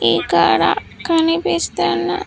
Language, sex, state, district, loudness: Telugu, female, Andhra Pradesh, Sri Satya Sai, -16 LUFS